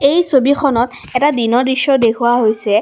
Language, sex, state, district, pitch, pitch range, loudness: Assamese, female, Assam, Kamrup Metropolitan, 250 Hz, 235-280 Hz, -14 LUFS